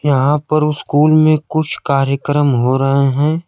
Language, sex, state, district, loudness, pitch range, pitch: Hindi, male, Bihar, Kaimur, -14 LUFS, 140-155 Hz, 145 Hz